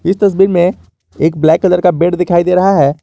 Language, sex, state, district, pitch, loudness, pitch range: Hindi, male, Jharkhand, Garhwa, 175 Hz, -11 LUFS, 160-185 Hz